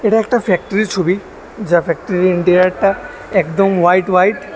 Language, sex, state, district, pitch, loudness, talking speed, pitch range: Bengali, male, Tripura, West Tripura, 185 Hz, -14 LUFS, 170 wpm, 180-200 Hz